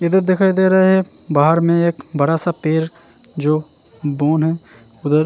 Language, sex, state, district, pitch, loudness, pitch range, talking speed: Hindi, male, Uttarakhand, Tehri Garhwal, 160 Hz, -16 LUFS, 150-180 Hz, 170 wpm